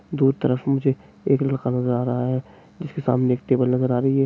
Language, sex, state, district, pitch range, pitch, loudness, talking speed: Hindi, male, Jharkhand, Jamtara, 125-135 Hz, 130 Hz, -22 LUFS, 240 wpm